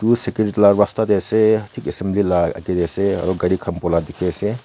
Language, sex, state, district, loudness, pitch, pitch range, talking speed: Nagamese, female, Nagaland, Kohima, -18 LUFS, 100 Hz, 90-110 Hz, 195 wpm